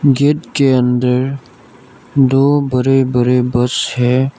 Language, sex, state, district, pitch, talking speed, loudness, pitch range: Hindi, male, Arunachal Pradesh, Lower Dibang Valley, 130 Hz, 110 wpm, -14 LUFS, 125-135 Hz